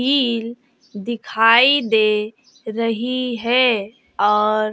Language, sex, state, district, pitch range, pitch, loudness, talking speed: Hindi, female, Bihar, West Champaran, 215-250 Hz, 230 Hz, -17 LUFS, 75 wpm